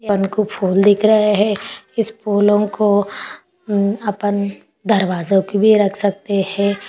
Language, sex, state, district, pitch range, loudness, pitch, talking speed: Hindi, male, Maharashtra, Sindhudurg, 200-210 Hz, -17 LUFS, 205 Hz, 120 wpm